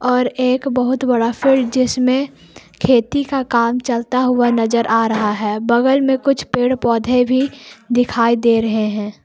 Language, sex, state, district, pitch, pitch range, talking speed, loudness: Hindi, female, Jharkhand, Palamu, 245 Hz, 230-255 Hz, 160 wpm, -16 LUFS